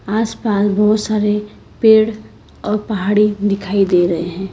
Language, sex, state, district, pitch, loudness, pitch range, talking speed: Hindi, female, Karnataka, Bangalore, 210 Hz, -16 LUFS, 195-215 Hz, 130 wpm